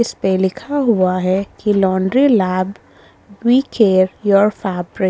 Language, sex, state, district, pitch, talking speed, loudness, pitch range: Hindi, female, Chhattisgarh, Korba, 200 Hz, 155 wpm, -16 LUFS, 185-230 Hz